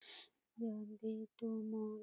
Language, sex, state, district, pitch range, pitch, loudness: Hindi, female, Bihar, Purnia, 215-230 Hz, 220 Hz, -46 LUFS